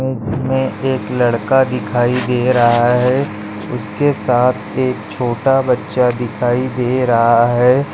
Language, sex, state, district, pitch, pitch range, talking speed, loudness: Hindi, male, Maharashtra, Chandrapur, 125 Hz, 120-130 Hz, 130 wpm, -15 LUFS